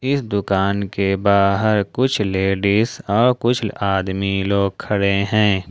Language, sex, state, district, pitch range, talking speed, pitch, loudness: Hindi, male, Jharkhand, Ranchi, 100-110 Hz, 125 wpm, 100 Hz, -18 LUFS